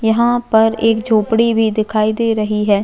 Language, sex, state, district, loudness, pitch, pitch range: Hindi, female, Chhattisgarh, Jashpur, -15 LUFS, 220 Hz, 215-225 Hz